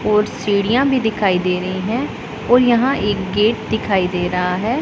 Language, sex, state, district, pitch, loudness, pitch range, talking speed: Hindi, female, Punjab, Pathankot, 210 Hz, -17 LUFS, 190-235 Hz, 185 wpm